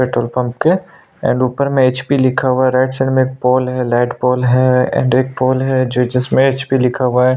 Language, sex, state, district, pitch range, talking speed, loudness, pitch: Hindi, male, Chhattisgarh, Sukma, 125-130 Hz, 235 wpm, -14 LUFS, 130 Hz